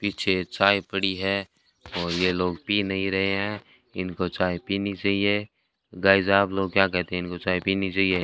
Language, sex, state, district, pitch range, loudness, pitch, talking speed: Hindi, male, Rajasthan, Bikaner, 90-100 Hz, -24 LUFS, 95 Hz, 180 wpm